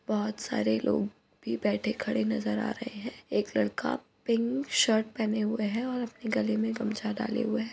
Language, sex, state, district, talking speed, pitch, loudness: Hindi, female, Uttar Pradesh, Budaun, 195 wpm, 220 Hz, -30 LUFS